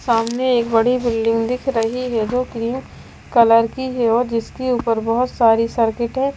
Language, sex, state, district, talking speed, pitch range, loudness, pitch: Hindi, female, Maharashtra, Gondia, 180 wpm, 230-250 Hz, -18 LUFS, 235 Hz